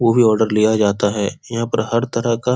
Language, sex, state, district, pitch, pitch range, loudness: Hindi, male, Bihar, Supaul, 115 Hz, 105-115 Hz, -17 LUFS